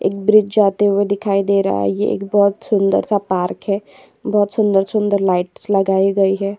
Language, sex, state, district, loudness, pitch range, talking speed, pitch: Hindi, female, Chhattisgarh, Korba, -16 LUFS, 195-205 Hz, 200 wpm, 200 Hz